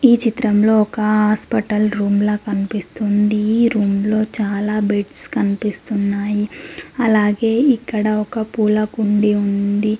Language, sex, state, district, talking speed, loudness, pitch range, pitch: Telugu, female, Telangana, Mahabubabad, 115 wpm, -17 LUFS, 205-220 Hz, 210 Hz